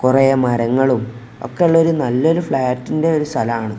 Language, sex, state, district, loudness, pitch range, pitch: Malayalam, male, Kerala, Kozhikode, -16 LUFS, 115-155 Hz, 130 Hz